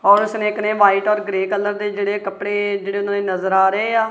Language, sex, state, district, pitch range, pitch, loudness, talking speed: Punjabi, female, Punjab, Kapurthala, 195-210 Hz, 205 Hz, -18 LUFS, 275 wpm